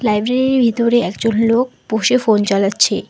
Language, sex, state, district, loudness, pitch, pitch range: Bengali, female, West Bengal, Alipurduar, -15 LUFS, 225 Hz, 210-245 Hz